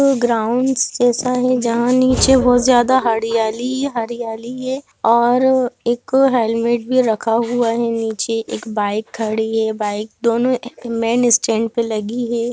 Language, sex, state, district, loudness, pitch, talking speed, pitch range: Hindi, female, Bihar, Gopalganj, -17 LUFS, 235 Hz, 140 wpm, 225-250 Hz